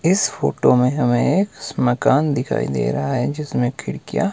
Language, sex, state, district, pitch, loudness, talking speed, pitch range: Hindi, male, Himachal Pradesh, Shimla, 140 Hz, -19 LUFS, 165 wpm, 125-165 Hz